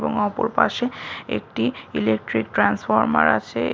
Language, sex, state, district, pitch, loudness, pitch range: Bengali, female, West Bengal, Paschim Medinipur, 110 Hz, -21 LUFS, 100-115 Hz